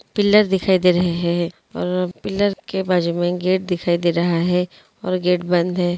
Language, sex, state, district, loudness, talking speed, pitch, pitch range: Hindi, female, Andhra Pradesh, Guntur, -19 LUFS, 190 wpm, 180 Hz, 175-185 Hz